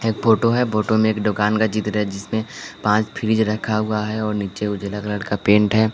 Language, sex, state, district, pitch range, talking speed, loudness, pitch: Hindi, male, Bihar, West Champaran, 105-110 Hz, 225 wpm, -20 LUFS, 110 Hz